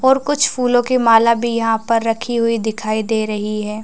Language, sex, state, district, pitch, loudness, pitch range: Hindi, female, Chhattisgarh, Raigarh, 230 Hz, -16 LUFS, 220-245 Hz